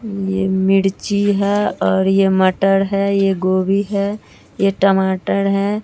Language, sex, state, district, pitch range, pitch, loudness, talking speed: Hindi, female, Bihar, Katihar, 190-200 Hz, 195 Hz, -16 LUFS, 135 wpm